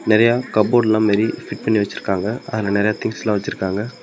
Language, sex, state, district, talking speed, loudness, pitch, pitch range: Tamil, male, Tamil Nadu, Namakkal, 165 wpm, -19 LUFS, 110 Hz, 100-120 Hz